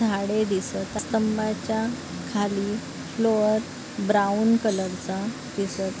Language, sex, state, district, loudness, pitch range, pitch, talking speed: Marathi, female, Maharashtra, Nagpur, -25 LUFS, 200-220 Hz, 215 Hz, 80 wpm